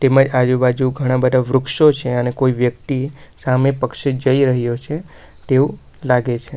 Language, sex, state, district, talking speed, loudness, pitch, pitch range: Gujarati, male, Gujarat, Valsad, 145 wpm, -17 LUFS, 130 Hz, 125-135 Hz